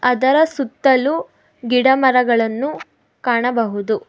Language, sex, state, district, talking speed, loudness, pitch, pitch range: Kannada, female, Karnataka, Bangalore, 75 wpm, -17 LUFS, 250 Hz, 235-270 Hz